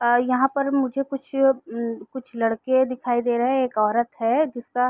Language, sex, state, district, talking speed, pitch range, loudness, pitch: Hindi, female, Chhattisgarh, Raigarh, 210 wpm, 235-270 Hz, -22 LUFS, 250 Hz